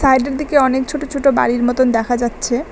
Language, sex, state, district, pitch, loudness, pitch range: Bengali, female, West Bengal, Alipurduar, 260 Hz, -16 LUFS, 245-280 Hz